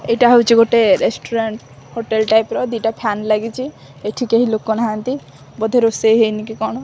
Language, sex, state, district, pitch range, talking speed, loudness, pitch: Odia, female, Odisha, Khordha, 220-235 Hz, 165 wpm, -16 LUFS, 225 Hz